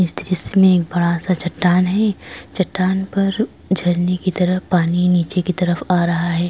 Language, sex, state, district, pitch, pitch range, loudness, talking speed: Hindi, female, Goa, North and South Goa, 180 Hz, 175-190 Hz, -17 LUFS, 185 wpm